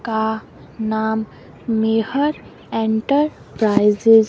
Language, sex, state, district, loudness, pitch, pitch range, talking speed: Hindi, female, Himachal Pradesh, Shimla, -19 LUFS, 220 Hz, 220-225 Hz, 70 wpm